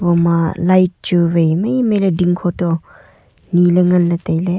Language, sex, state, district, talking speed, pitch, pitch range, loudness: Wancho, female, Arunachal Pradesh, Longding, 130 wpm, 175 Hz, 170-180 Hz, -15 LUFS